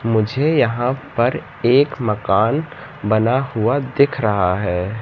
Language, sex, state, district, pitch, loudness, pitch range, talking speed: Hindi, male, Madhya Pradesh, Katni, 120 Hz, -18 LUFS, 105-140 Hz, 120 wpm